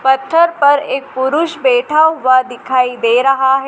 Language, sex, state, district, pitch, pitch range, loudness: Hindi, female, Madhya Pradesh, Dhar, 265 Hz, 255-295 Hz, -13 LUFS